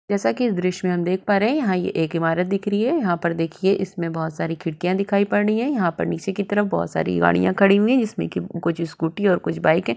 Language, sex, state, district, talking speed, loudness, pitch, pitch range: Hindi, female, Maharashtra, Chandrapur, 285 wpm, -21 LUFS, 185 Hz, 165-200 Hz